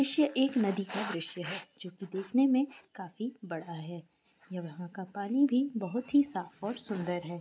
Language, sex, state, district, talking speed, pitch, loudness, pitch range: Maithili, female, Bihar, Madhepura, 185 wpm, 195 Hz, -32 LUFS, 175-250 Hz